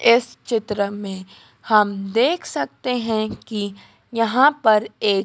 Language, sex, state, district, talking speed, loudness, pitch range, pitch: Hindi, female, Madhya Pradesh, Dhar, 125 wpm, -20 LUFS, 205-235 Hz, 220 Hz